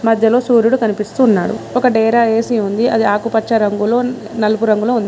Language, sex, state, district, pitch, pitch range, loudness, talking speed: Telugu, female, Telangana, Mahabubabad, 225 Hz, 215-240 Hz, -14 LUFS, 165 wpm